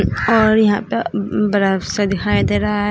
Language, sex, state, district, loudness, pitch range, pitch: Hindi, female, Uttar Pradesh, Shamli, -16 LUFS, 160-210 Hz, 205 Hz